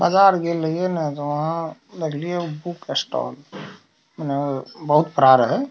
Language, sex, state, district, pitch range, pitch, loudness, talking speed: Maithili, male, Bihar, Darbhanga, 145-175 Hz, 160 Hz, -21 LUFS, 135 wpm